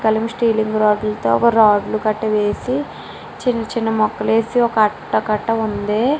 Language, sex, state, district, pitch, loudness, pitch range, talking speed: Telugu, female, Andhra Pradesh, Srikakulam, 220 Hz, -17 LUFS, 215-230 Hz, 105 wpm